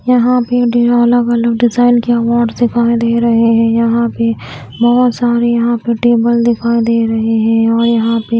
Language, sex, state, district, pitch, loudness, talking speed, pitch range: Hindi, female, Haryana, Rohtak, 235 Hz, -12 LUFS, 185 wpm, 230-240 Hz